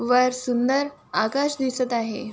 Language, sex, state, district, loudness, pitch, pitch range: Marathi, female, Maharashtra, Sindhudurg, -23 LUFS, 255 Hz, 240-270 Hz